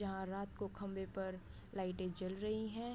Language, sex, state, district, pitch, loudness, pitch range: Hindi, female, Uttar Pradesh, Budaun, 195 Hz, -44 LUFS, 190-210 Hz